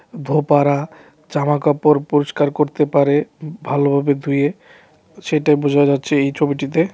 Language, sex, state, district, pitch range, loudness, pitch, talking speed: Bengali, male, Tripura, West Tripura, 140-150 Hz, -17 LUFS, 145 Hz, 105 wpm